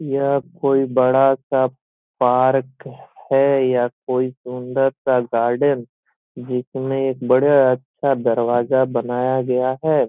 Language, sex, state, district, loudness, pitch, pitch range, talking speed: Hindi, male, Bihar, Gopalganj, -19 LUFS, 130 Hz, 125-135 Hz, 115 wpm